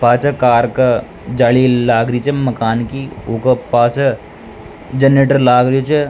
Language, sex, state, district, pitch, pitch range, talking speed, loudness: Rajasthani, male, Rajasthan, Nagaur, 125 Hz, 120-135 Hz, 145 wpm, -13 LUFS